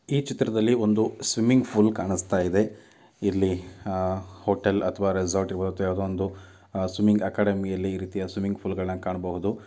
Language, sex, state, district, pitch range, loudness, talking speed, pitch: Kannada, male, Karnataka, Dakshina Kannada, 95-105 Hz, -26 LUFS, 145 wpm, 95 Hz